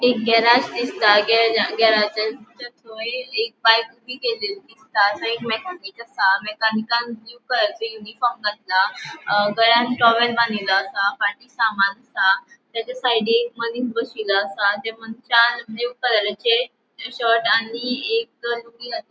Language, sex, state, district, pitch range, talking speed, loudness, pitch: Konkani, female, Goa, North and South Goa, 215-245 Hz, 120 wpm, -20 LUFS, 230 Hz